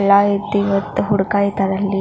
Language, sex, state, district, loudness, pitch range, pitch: Kannada, female, Karnataka, Belgaum, -17 LUFS, 195-200 Hz, 200 Hz